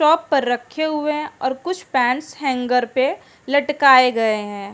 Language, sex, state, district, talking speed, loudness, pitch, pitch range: Hindi, female, Uttarakhand, Uttarkashi, 165 wpm, -19 LUFS, 265 Hz, 245-300 Hz